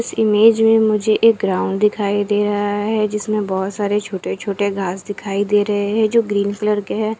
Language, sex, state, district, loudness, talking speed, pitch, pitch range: Hindi, female, Bihar, Katihar, -17 LUFS, 210 wpm, 205 Hz, 200-215 Hz